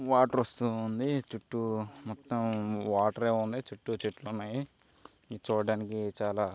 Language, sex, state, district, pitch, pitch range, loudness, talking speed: Telugu, male, Andhra Pradesh, Guntur, 110 Hz, 105-125 Hz, -32 LUFS, 130 wpm